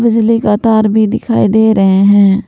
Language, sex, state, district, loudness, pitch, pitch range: Hindi, female, Jharkhand, Palamu, -10 LUFS, 220 Hz, 205-225 Hz